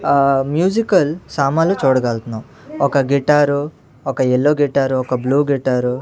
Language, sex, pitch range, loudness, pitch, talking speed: Telugu, male, 130-145 Hz, -16 LUFS, 140 Hz, 130 wpm